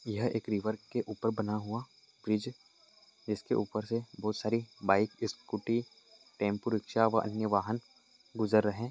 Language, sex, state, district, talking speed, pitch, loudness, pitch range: Hindi, male, Uttar Pradesh, Etah, 150 wpm, 110 Hz, -33 LUFS, 105-115 Hz